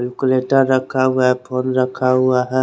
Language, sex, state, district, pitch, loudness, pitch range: Hindi, male, Chandigarh, Chandigarh, 130 Hz, -17 LUFS, 125-130 Hz